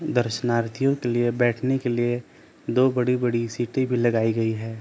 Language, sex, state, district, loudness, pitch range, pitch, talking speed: Hindi, male, Jharkhand, Jamtara, -23 LUFS, 115-125 Hz, 120 Hz, 175 wpm